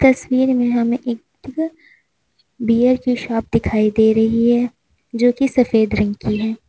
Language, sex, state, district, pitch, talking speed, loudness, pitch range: Hindi, female, Uttar Pradesh, Lalitpur, 240 Hz, 150 wpm, -17 LUFS, 225-255 Hz